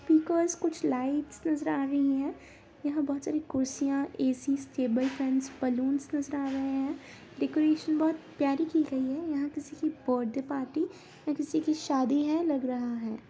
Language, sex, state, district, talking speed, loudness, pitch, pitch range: Hindi, female, Bihar, Darbhanga, 170 wpm, -30 LUFS, 285 Hz, 270-310 Hz